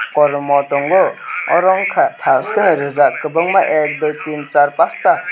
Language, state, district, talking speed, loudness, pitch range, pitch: Kokborok, Tripura, West Tripura, 135 wpm, -15 LUFS, 145-170 Hz, 150 Hz